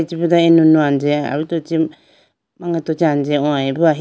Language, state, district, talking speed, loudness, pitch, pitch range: Idu Mishmi, Arunachal Pradesh, Lower Dibang Valley, 150 wpm, -16 LUFS, 160 Hz, 145-165 Hz